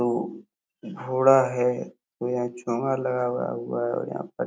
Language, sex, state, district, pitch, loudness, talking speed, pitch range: Hindi, male, Bihar, Supaul, 125 Hz, -25 LUFS, 160 wpm, 120-130 Hz